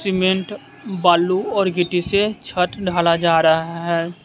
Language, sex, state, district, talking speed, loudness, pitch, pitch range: Hindi, male, Bihar, West Champaran, 140 wpm, -18 LUFS, 180 Hz, 170-190 Hz